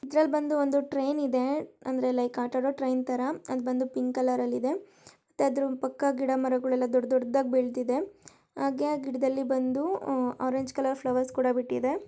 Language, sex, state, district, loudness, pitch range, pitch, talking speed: Kannada, male, Karnataka, Shimoga, -29 LUFS, 255-275 Hz, 265 Hz, 155 wpm